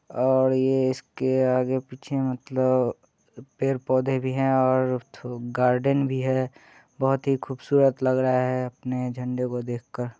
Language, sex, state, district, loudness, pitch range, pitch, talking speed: Hindi, male, Bihar, Muzaffarpur, -24 LUFS, 125-130 Hz, 130 Hz, 165 wpm